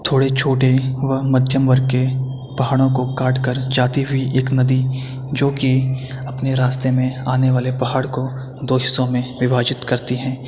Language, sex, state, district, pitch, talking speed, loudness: Hindi, male, Uttar Pradesh, Etah, 130 Hz, 165 wpm, -18 LUFS